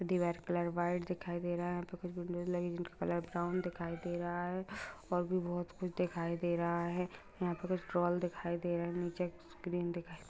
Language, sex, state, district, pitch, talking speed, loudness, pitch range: Hindi, female, Bihar, Lakhisarai, 175 Hz, 215 wpm, -38 LUFS, 175-180 Hz